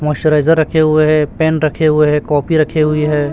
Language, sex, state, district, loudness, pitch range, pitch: Hindi, male, Chhattisgarh, Raipur, -13 LUFS, 150-155 Hz, 155 Hz